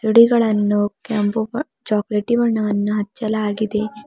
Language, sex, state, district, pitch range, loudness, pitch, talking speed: Kannada, female, Karnataka, Bidar, 210-230 Hz, -19 LUFS, 215 Hz, 90 wpm